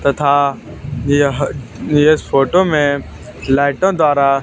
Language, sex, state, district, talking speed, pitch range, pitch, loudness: Hindi, male, Haryana, Charkhi Dadri, 95 wpm, 140-150 Hz, 140 Hz, -14 LUFS